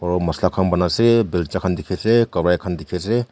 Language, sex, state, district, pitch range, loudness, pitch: Nagamese, male, Nagaland, Kohima, 90-115 Hz, -19 LUFS, 90 Hz